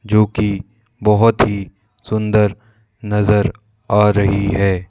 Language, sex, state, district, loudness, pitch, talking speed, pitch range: Hindi, male, Madhya Pradesh, Bhopal, -16 LUFS, 105 Hz, 110 wpm, 100-110 Hz